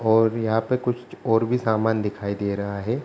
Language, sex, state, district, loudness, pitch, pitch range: Hindi, male, Bihar, Kishanganj, -23 LUFS, 110 Hz, 105-120 Hz